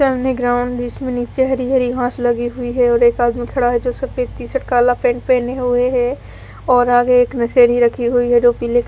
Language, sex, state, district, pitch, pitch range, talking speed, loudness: Hindi, female, Haryana, Charkhi Dadri, 245 Hz, 240-250 Hz, 225 wpm, -16 LUFS